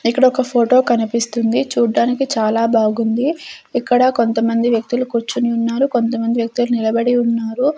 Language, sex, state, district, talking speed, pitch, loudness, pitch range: Telugu, female, Andhra Pradesh, Sri Satya Sai, 130 wpm, 235 Hz, -16 LUFS, 230-250 Hz